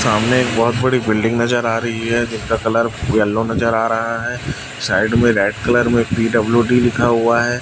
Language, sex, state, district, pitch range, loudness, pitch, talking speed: Hindi, male, Chhattisgarh, Raipur, 115-120 Hz, -16 LUFS, 115 Hz, 195 wpm